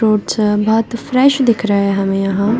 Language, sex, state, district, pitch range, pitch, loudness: Hindi, female, Bihar, Darbhanga, 200-235 Hz, 215 Hz, -14 LUFS